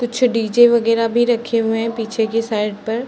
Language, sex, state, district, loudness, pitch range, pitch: Hindi, female, Uttar Pradesh, Varanasi, -17 LUFS, 225-240 Hz, 230 Hz